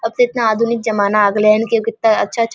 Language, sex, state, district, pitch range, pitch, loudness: Maithili, female, Bihar, Vaishali, 215-230 Hz, 225 Hz, -15 LUFS